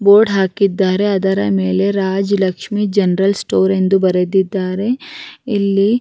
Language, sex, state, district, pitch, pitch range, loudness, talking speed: Kannada, female, Karnataka, Raichur, 195 Hz, 190-205 Hz, -15 LUFS, 110 wpm